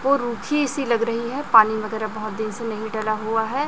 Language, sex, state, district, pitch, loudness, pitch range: Hindi, male, Chhattisgarh, Raipur, 225 Hz, -22 LUFS, 220-260 Hz